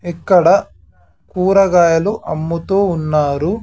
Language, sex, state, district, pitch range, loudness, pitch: Telugu, male, Andhra Pradesh, Sri Satya Sai, 150-190 Hz, -14 LUFS, 170 Hz